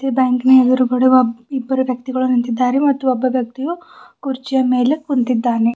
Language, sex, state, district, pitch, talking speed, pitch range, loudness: Kannada, female, Karnataka, Bidar, 255 Hz, 125 wpm, 250-265 Hz, -16 LUFS